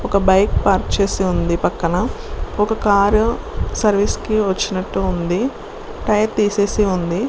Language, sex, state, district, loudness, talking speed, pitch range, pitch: Telugu, female, Telangana, Karimnagar, -18 LUFS, 130 wpm, 190-215 Hz, 205 Hz